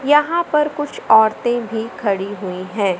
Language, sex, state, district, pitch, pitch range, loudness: Hindi, male, Madhya Pradesh, Katni, 225 Hz, 200-295 Hz, -18 LUFS